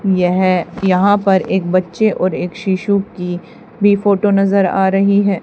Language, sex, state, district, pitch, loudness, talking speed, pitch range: Hindi, female, Haryana, Charkhi Dadri, 195 Hz, -15 LUFS, 165 wpm, 185-200 Hz